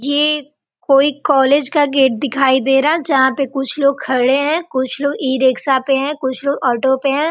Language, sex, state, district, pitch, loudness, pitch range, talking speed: Hindi, female, Bihar, Gopalganj, 275 Hz, -15 LUFS, 265-290 Hz, 215 wpm